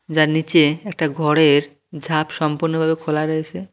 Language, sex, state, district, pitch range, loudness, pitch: Bengali, male, West Bengal, Cooch Behar, 150-160 Hz, -18 LUFS, 155 Hz